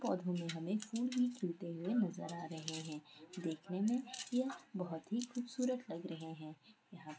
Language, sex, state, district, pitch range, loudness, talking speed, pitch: Hindi, female, Chhattisgarh, Kabirdham, 165-240 Hz, -41 LUFS, 175 wpm, 185 Hz